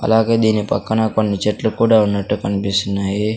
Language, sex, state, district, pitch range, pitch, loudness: Telugu, male, Andhra Pradesh, Sri Satya Sai, 100-110 Hz, 105 Hz, -17 LUFS